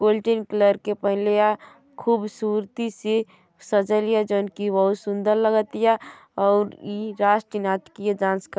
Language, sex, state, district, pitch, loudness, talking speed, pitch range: Bhojpuri, female, Uttar Pradesh, Gorakhpur, 210 Hz, -23 LUFS, 145 wpm, 200-215 Hz